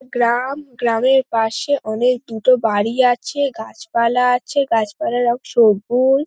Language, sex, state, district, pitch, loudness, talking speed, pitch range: Bengali, female, West Bengal, Dakshin Dinajpur, 245 Hz, -17 LUFS, 125 wpm, 230-265 Hz